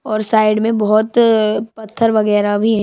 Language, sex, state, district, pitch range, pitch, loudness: Hindi, female, Haryana, Charkhi Dadri, 215-225 Hz, 220 Hz, -14 LUFS